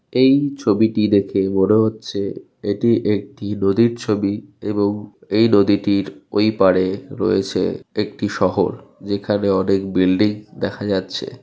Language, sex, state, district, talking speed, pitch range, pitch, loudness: Bengali, male, West Bengal, North 24 Parganas, 110 wpm, 100-110 Hz, 100 Hz, -19 LUFS